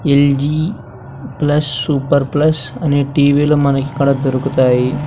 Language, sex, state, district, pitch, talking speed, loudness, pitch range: Telugu, male, Andhra Pradesh, Sri Satya Sai, 140 Hz, 130 wpm, -15 LUFS, 135-145 Hz